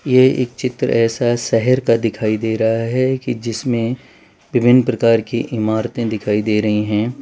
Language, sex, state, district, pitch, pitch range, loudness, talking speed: Hindi, male, Gujarat, Valsad, 115 Hz, 110-125 Hz, -17 LUFS, 165 wpm